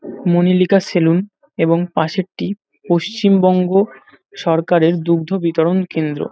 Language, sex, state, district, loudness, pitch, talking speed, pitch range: Bengali, male, West Bengal, North 24 Parganas, -16 LUFS, 175 Hz, 85 wpm, 165-190 Hz